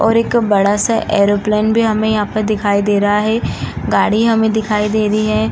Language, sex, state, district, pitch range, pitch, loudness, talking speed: Hindi, female, Uttar Pradesh, Jalaun, 205-220 Hz, 215 Hz, -14 LUFS, 205 wpm